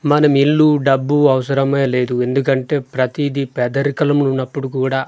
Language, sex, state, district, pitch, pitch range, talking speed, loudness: Telugu, male, Andhra Pradesh, Manyam, 135 Hz, 130-145 Hz, 120 wpm, -16 LUFS